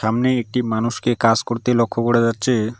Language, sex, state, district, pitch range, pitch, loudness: Bengali, male, West Bengal, Alipurduar, 115-120 Hz, 115 Hz, -19 LUFS